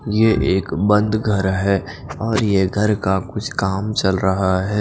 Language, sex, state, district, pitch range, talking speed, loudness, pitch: Hindi, male, Odisha, Khordha, 95-110 Hz, 175 wpm, -18 LUFS, 100 Hz